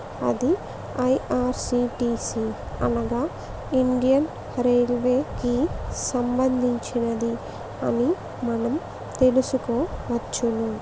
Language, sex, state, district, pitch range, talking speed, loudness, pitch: Telugu, female, Andhra Pradesh, Visakhapatnam, 235-260 Hz, 60 wpm, -24 LUFS, 245 Hz